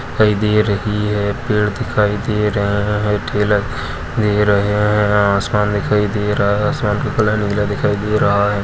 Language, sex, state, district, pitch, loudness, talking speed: Hindi, male, Uttar Pradesh, Budaun, 105 Hz, -16 LUFS, 195 wpm